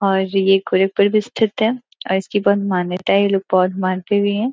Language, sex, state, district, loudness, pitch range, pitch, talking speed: Hindi, female, Uttar Pradesh, Gorakhpur, -17 LUFS, 190-205 Hz, 195 Hz, 225 wpm